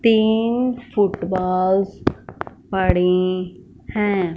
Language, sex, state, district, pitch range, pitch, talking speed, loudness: Hindi, female, Punjab, Fazilka, 185-220 Hz, 195 Hz, 55 wpm, -20 LUFS